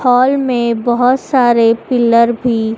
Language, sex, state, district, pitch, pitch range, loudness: Hindi, female, Madhya Pradesh, Dhar, 240 Hz, 235-255 Hz, -12 LUFS